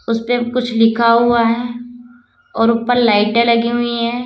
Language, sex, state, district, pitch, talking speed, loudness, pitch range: Hindi, female, Uttar Pradesh, Lalitpur, 235 Hz, 155 wpm, -14 LUFS, 230-240 Hz